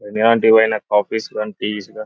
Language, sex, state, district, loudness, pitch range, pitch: Telugu, male, Telangana, Nalgonda, -17 LUFS, 105-110 Hz, 110 Hz